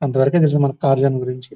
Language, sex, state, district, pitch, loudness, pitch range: Telugu, male, Andhra Pradesh, Guntur, 135 Hz, -17 LUFS, 130-145 Hz